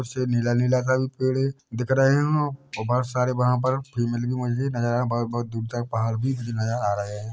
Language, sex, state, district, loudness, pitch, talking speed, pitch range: Hindi, male, Chhattisgarh, Bilaspur, -24 LUFS, 125 Hz, 270 wpm, 120-130 Hz